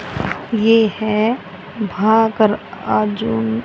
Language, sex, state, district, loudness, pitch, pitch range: Hindi, female, Haryana, Rohtak, -17 LUFS, 215 Hz, 195-220 Hz